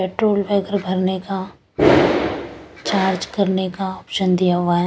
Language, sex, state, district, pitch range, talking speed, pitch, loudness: Hindi, female, Chandigarh, Chandigarh, 185-205 Hz, 135 wpm, 190 Hz, -19 LUFS